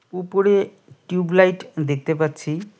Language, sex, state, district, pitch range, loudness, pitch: Bengali, male, West Bengal, Cooch Behar, 155-190 Hz, -20 LUFS, 180 Hz